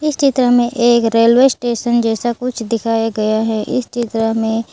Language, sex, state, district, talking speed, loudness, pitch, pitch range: Hindi, female, Gujarat, Valsad, 190 wpm, -15 LUFS, 235 Hz, 225-245 Hz